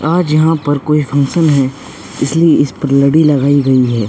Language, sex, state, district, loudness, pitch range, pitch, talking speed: Hindi, male, Chhattisgarh, Korba, -12 LUFS, 140-155 Hz, 145 Hz, 190 wpm